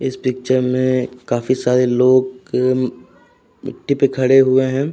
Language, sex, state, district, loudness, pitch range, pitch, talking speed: Hindi, male, Uttar Pradesh, Jyotiba Phule Nagar, -16 LUFS, 125-130 Hz, 130 Hz, 135 wpm